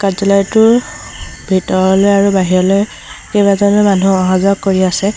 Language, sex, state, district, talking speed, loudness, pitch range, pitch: Assamese, female, Assam, Sonitpur, 140 wpm, -12 LUFS, 190-200 Hz, 195 Hz